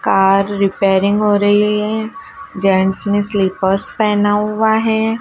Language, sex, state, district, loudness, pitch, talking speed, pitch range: Hindi, female, Madhya Pradesh, Dhar, -15 LUFS, 205 Hz, 125 wpm, 195-220 Hz